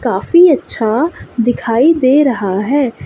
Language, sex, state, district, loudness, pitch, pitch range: Hindi, female, Chandigarh, Chandigarh, -12 LUFS, 255 Hz, 230-300 Hz